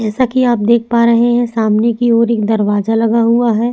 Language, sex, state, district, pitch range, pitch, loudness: Hindi, female, Chhattisgarh, Sukma, 225-235 Hz, 230 Hz, -13 LUFS